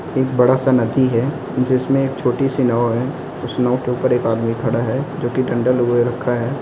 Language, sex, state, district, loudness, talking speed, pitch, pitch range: Hindi, male, West Bengal, Kolkata, -18 LUFS, 225 wpm, 125 Hz, 120-130 Hz